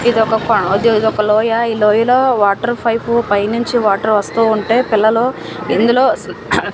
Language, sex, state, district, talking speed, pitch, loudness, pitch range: Telugu, female, Andhra Pradesh, Manyam, 170 wpm, 225 Hz, -14 LUFS, 215-235 Hz